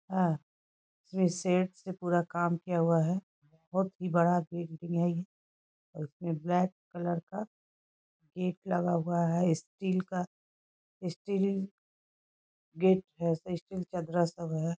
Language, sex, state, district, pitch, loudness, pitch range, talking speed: Hindi, female, West Bengal, North 24 Parganas, 175 Hz, -32 LUFS, 165-185 Hz, 120 wpm